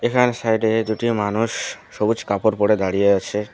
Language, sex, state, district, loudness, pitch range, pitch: Bengali, male, West Bengal, Alipurduar, -20 LUFS, 105-115 Hz, 110 Hz